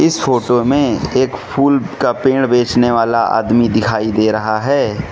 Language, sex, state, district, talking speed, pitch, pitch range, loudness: Hindi, male, Mizoram, Aizawl, 165 wpm, 120 Hz, 110-130 Hz, -14 LUFS